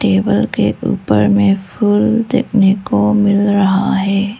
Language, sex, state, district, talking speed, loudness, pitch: Hindi, female, Arunachal Pradesh, Lower Dibang Valley, 135 wpm, -14 LUFS, 200 Hz